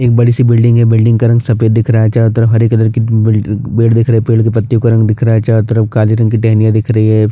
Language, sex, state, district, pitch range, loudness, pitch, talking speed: Hindi, male, Chhattisgarh, Bastar, 110-115 Hz, -10 LUFS, 115 Hz, 320 wpm